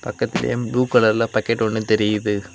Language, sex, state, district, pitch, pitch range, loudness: Tamil, male, Tamil Nadu, Kanyakumari, 110 Hz, 105-115 Hz, -19 LUFS